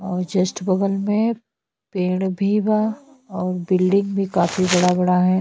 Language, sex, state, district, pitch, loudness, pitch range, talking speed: Bhojpuri, female, Uttar Pradesh, Ghazipur, 190 Hz, -20 LUFS, 180-205 Hz, 155 wpm